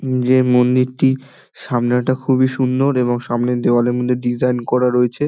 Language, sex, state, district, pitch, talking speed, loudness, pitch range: Bengali, male, West Bengal, Dakshin Dinajpur, 125 Hz, 150 wpm, -17 LUFS, 125-130 Hz